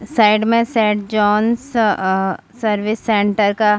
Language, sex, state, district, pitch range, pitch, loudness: Hindi, female, Jharkhand, Sahebganj, 205-225 Hz, 215 Hz, -16 LUFS